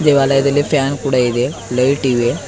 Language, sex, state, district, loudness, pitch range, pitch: Kannada, male, Karnataka, Bidar, -15 LUFS, 125-145 Hz, 135 Hz